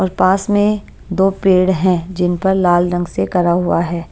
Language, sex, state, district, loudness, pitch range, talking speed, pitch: Hindi, female, Punjab, Pathankot, -15 LUFS, 175-190 Hz, 205 wpm, 185 Hz